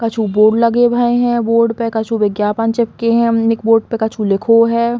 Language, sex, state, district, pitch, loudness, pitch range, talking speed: Bundeli, female, Uttar Pradesh, Hamirpur, 230 Hz, -14 LUFS, 220-235 Hz, 205 wpm